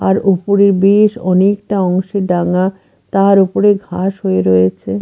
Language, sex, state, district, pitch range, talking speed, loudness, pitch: Bengali, female, Bihar, Katihar, 180-200 Hz, 130 wpm, -13 LUFS, 190 Hz